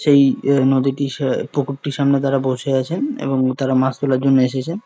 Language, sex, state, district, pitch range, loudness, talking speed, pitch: Bengali, male, West Bengal, Jalpaiguri, 130-140 Hz, -18 LUFS, 195 wpm, 135 Hz